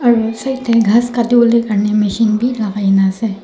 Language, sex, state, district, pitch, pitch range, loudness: Nagamese, male, Nagaland, Dimapur, 225 Hz, 210-235 Hz, -14 LUFS